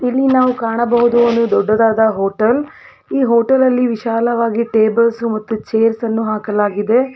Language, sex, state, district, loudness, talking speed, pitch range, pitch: Kannada, female, Karnataka, Belgaum, -15 LUFS, 125 wpm, 220-240 Hz, 230 Hz